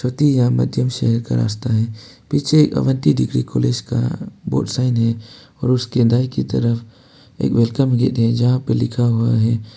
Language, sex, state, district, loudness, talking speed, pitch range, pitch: Hindi, male, Arunachal Pradesh, Papum Pare, -18 LUFS, 160 wpm, 110-125 Hz, 120 Hz